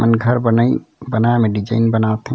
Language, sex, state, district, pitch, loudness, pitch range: Chhattisgarhi, male, Chhattisgarh, Raigarh, 115 Hz, -16 LUFS, 110-120 Hz